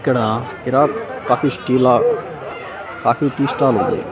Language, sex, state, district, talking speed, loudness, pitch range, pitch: Telugu, male, Andhra Pradesh, Annamaya, 115 wpm, -17 LUFS, 125-145 Hz, 130 Hz